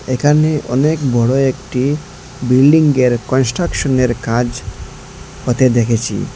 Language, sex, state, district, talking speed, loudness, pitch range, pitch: Bengali, male, Assam, Hailakandi, 85 wpm, -14 LUFS, 120-140 Hz, 130 Hz